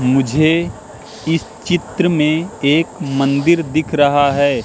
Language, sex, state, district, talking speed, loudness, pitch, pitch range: Hindi, male, Madhya Pradesh, Katni, 115 wpm, -15 LUFS, 155 Hz, 140-165 Hz